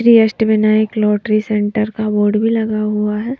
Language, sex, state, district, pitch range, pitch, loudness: Hindi, female, Maharashtra, Mumbai Suburban, 210-220 Hz, 215 Hz, -15 LUFS